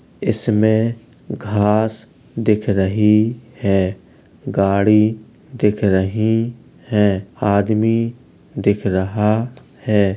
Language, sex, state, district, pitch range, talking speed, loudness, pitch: Hindi, male, Uttar Pradesh, Jalaun, 100-115 Hz, 75 wpm, -18 LUFS, 105 Hz